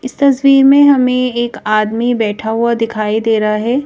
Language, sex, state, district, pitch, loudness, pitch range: Hindi, female, Madhya Pradesh, Bhopal, 235 Hz, -12 LUFS, 220-260 Hz